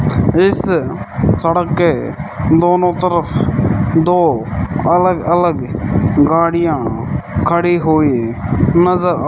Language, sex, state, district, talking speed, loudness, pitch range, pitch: Hindi, male, Rajasthan, Bikaner, 85 wpm, -14 LUFS, 145-175 Hz, 165 Hz